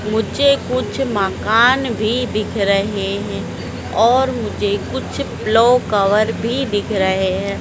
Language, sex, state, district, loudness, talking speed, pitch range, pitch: Hindi, female, Madhya Pradesh, Dhar, -17 LUFS, 125 wpm, 200-240 Hz, 215 Hz